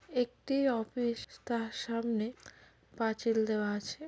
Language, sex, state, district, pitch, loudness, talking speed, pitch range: Bengali, female, West Bengal, Paschim Medinipur, 230 Hz, -34 LUFS, 120 wpm, 220-250 Hz